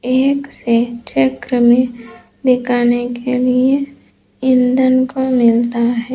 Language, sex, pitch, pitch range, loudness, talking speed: Hindi, female, 250 Hz, 235-255 Hz, -15 LUFS, 105 wpm